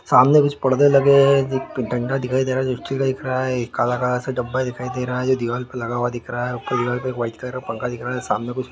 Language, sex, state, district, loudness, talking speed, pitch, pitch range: Hindi, male, West Bengal, Malda, -20 LUFS, 220 wpm, 125 Hz, 125-130 Hz